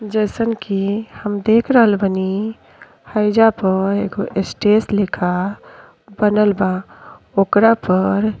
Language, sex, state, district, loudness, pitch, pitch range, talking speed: Bhojpuri, female, Uttar Pradesh, Ghazipur, -17 LUFS, 205 Hz, 195-215 Hz, 115 wpm